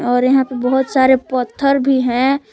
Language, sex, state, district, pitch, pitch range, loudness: Hindi, female, Jharkhand, Palamu, 260 Hz, 250-270 Hz, -15 LUFS